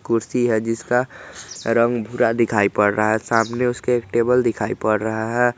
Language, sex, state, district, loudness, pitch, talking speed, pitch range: Hindi, male, Jharkhand, Garhwa, -20 LUFS, 115 Hz, 185 wpm, 110-120 Hz